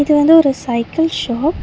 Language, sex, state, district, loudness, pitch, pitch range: Tamil, female, Tamil Nadu, Chennai, -14 LUFS, 295 Hz, 250-320 Hz